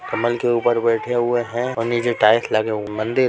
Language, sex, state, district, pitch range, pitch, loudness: Hindi, male, Bihar, Jahanabad, 110-120 Hz, 120 Hz, -19 LUFS